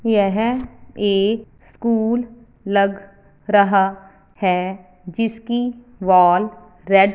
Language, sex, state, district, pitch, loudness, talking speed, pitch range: Hindi, female, Punjab, Fazilka, 200 Hz, -19 LUFS, 85 wpm, 195-225 Hz